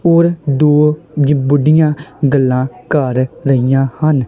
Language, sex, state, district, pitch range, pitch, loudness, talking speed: Punjabi, male, Punjab, Kapurthala, 135-155 Hz, 145 Hz, -13 LUFS, 100 wpm